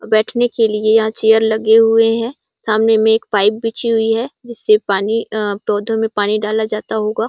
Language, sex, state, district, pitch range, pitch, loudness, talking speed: Hindi, female, Chhattisgarh, Sarguja, 215-225 Hz, 220 Hz, -15 LUFS, 195 wpm